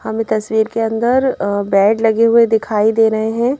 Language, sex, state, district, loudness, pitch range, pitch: Hindi, female, Madhya Pradesh, Bhopal, -15 LUFS, 220-230 Hz, 220 Hz